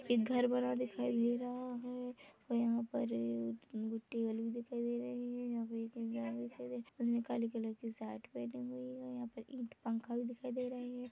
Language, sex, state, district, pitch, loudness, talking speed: Hindi, female, Chhattisgarh, Bilaspur, 230 Hz, -40 LUFS, 215 wpm